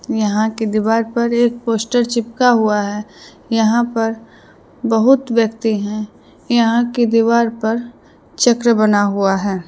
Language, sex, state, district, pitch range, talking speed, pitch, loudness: Hindi, female, Jharkhand, Deoghar, 215-235 Hz, 135 wpm, 225 Hz, -16 LUFS